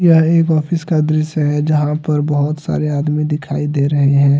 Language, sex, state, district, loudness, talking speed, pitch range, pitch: Hindi, male, Jharkhand, Deoghar, -15 LUFS, 205 wpm, 145-155 Hz, 150 Hz